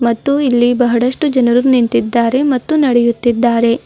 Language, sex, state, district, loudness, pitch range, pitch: Kannada, female, Karnataka, Bidar, -13 LUFS, 235-265 Hz, 245 Hz